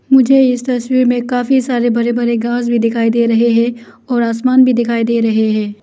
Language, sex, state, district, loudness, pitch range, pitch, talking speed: Hindi, female, Arunachal Pradesh, Lower Dibang Valley, -13 LUFS, 230-250 Hz, 240 Hz, 215 wpm